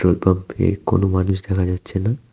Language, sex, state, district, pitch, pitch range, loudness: Bengali, male, Tripura, West Tripura, 95 Hz, 90-100 Hz, -20 LUFS